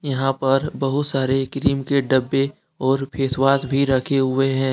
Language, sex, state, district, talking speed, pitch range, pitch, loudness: Hindi, male, Jharkhand, Deoghar, 190 wpm, 135-140 Hz, 135 Hz, -20 LUFS